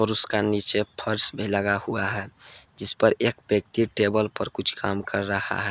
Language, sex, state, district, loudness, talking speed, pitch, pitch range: Hindi, male, Jharkhand, Palamu, -20 LUFS, 190 wpm, 105 Hz, 100-110 Hz